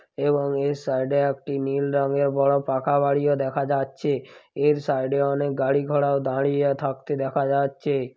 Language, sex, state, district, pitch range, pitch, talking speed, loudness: Bengali, male, West Bengal, Paschim Medinipur, 135-140 Hz, 140 Hz, 160 wpm, -23 LUFS